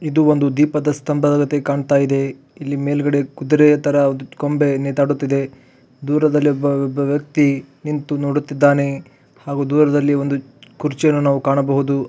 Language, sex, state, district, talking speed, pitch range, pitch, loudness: Kannada, male, Karnataka, Raichur, 125 wpm, 140-145 Hz, 140 Hz, -17 LUFS